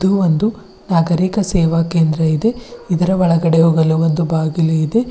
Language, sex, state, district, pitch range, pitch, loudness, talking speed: Kannada, female, Karnataka, Bidar, 165-190 Hz, 170 Hz, -15 LUFS, 140 wpm